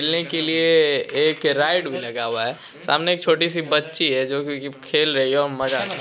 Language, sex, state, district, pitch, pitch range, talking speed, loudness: Hindi, male, Bihar, Begusarai, 155 Hz, 140-170 Hz, 220 wpm, -20 LUFS